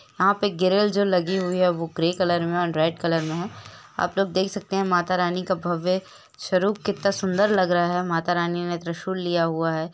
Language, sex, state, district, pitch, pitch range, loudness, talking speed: Hindi, female, Jharkhand, Jamtara, 180 Hz, 175-190 Hz, -23 LUFS, 230 wpm